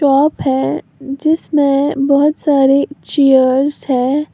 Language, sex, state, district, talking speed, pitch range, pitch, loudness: Hindi, female, Uttar Pradesh, Lalitpur, 95 wpm, 270-290 Hz, 280 Hz, -14 LUFS